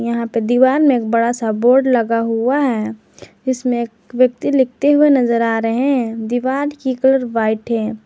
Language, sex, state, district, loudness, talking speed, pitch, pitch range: Hindi, female, Jharkhand, Garhwa, -16 LUFS, 185 wpm, 240 Hz, 230-260 Hz